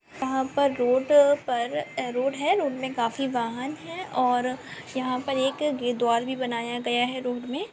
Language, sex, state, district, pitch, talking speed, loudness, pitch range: Hindi, female, Bihar, Sitamarhi, 255 Hz, 165 wpm, -26 LUFS, 245-275 Hz